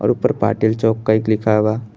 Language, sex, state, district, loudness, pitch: Bhojpuri, male, Uttar Pradesh, Gorakhpur, -17 LUFS, 110 Hz